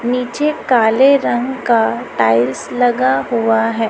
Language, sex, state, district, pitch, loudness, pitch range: Hindi, female, Chhattisgarh, Raipur, 235 Hz, -15 LUFS, 220-250 Hz